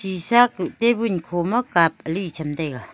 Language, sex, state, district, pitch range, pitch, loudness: Wancho, female, Arunachal Pradesh, Longding, 165-230 Hz, 180 Hz, -21 LUFS